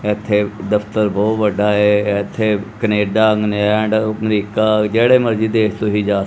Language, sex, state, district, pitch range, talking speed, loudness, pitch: Punjabi, male, Punjab, Kapurthala, 105-110 Hz, 145 wpm, -16 LUFS, 105 Hz